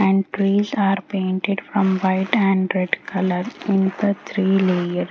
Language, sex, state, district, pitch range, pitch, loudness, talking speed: English, female, Haryana, Rohtak, 185-200 Hz, 195 Hz, -20 LUFS, 165 wpm